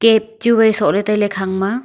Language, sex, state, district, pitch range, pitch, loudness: Wancho, female, Arunachal Pradesh, Longding, 200-225 Hz, 210 Hz, -15 LUFS